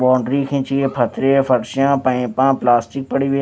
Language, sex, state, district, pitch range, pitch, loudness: Hindi, male, Chhattisgarh, Raipur, 125-135 Hz, 135 Hz, -17 LUFS